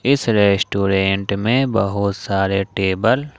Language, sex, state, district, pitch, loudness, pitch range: Hindi, male, Jharkhand, Ranchi, 100 Hz, -18 LUFS, 95-115 Hz